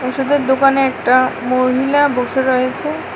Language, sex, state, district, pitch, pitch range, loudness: Bengali, female, Tripura, West Tripura, 265 Hz, 255-275 Hz, -15 LUFS